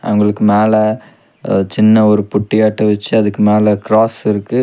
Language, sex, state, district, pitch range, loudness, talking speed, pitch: Tamil, male, Tamil Nadu, Nilgiris, 105-110 Hz, -13 LUFS, 145 wpm, 105 Hz